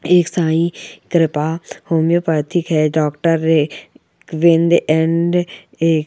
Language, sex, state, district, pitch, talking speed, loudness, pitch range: Hindi, female, Chhattisgarh, Bilaspur, 165 Hz, 100 wpm, -16 LUFS, 155-170 Hz